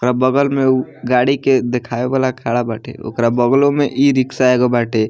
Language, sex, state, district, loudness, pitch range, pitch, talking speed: Bhojpuri, male, Bihar, Muzaffarpur, -16 LUFS, 120-135 Hz, 125 Hz, 190 wpm